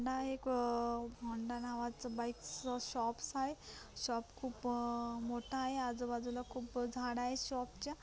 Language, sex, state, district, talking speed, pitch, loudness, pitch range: Marathi, female, Maharashtra, Chandrapur, 135 wpm, 245 Hz, -41 LUFS, 235-255 Hz